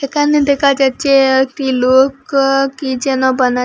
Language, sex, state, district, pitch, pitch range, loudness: Bengali, female, Assam, Hailakandi, 270 Hz, 260-275 Hz, -13 LUFS